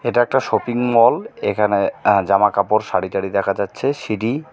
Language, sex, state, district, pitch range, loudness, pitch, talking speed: Bengali, male, West Bengal, Cooch Behar, 100-120 Hz, -18 LUFS, 110 Hz, 160 wpm